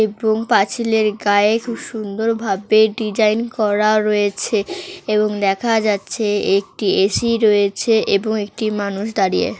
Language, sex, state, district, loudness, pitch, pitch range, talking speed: Bengali, female, West Bengal, North 24 Parganas, -17 LUFS, 215 Hz, 205-225 Hz, 120 wpm